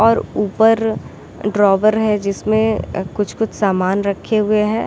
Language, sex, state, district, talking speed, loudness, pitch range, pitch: Hindi, female, Bihar, Saran, 135 wpm, -17 LUFS, 200-220 Hz, 210 Hz